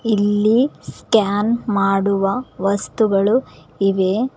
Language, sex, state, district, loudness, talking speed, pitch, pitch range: Kannada, female, Karnataka, Koppal, -18 LUFS, 70 wpm, 205 Hz, 195-225 Hz